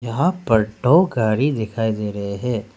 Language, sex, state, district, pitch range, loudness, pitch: Hindi, male, Arunachal Pradesh, Lower Dibang Valley, 110-130 Hz, -19 LUFS, 115 Hz